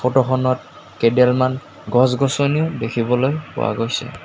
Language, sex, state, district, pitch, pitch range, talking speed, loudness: Assamese, male, Assam, Kamrup Metropolitan, 125 Hz, 115-135 Hz, 100 wpm, -19 LUFS